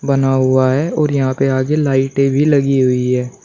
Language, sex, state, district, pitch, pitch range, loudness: Hindi, male, Uttar Pradesh, Shamli, 135 Hz, 130-140 Hz, -14 LUFS